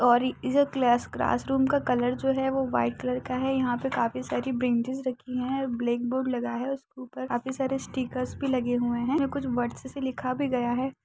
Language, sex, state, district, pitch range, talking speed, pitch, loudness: Hindi, female, Bihar, Saharsa, 245-265 Hz, 235 wpm, 255 Hz, -28 LUFS